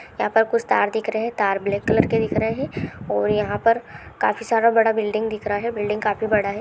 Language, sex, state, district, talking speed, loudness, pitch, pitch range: Hindi, female, Uttar Pradesh, Deoria, 255 wpm, -21 LUFS, 215 Hz, 205-225 Hz